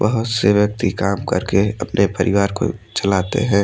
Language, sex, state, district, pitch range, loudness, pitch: Hindi, male, Odisha, Malkangiri, 95-105 Hz, -18 LUFS, 100 Hz